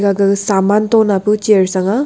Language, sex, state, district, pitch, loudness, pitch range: Wancho, female, Arunachal Pradesh, Longding, 200 Hz, -13 LUFS, 195-215 Hz